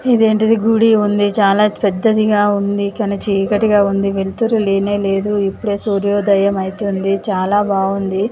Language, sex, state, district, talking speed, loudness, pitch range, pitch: Telugu, female, Telangana, Nalgonda, 115 wpm, -15 LUFS, 195-210 Hz, 205 Hz